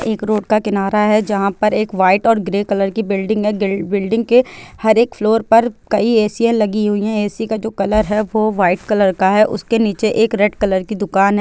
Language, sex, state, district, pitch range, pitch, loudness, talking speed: Hindi, female, Chhattisgarh, Bilaspur, 200-220 Hz, 210 Hz, -16 LUFS, 250 wpm